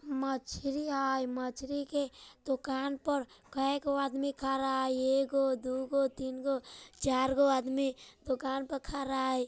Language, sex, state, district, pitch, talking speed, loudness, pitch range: Bajjika, male, Bihar, Vaishali, 270 Hz, 145 wpm, -33 LUFS, 265-275 Hz